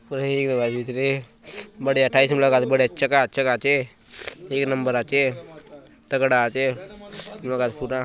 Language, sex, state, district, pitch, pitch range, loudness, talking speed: Halbi, male, Chhattisgarh, Bastar, 135 Hz, 125-140 Hz, -22 LUFS, 155 wpm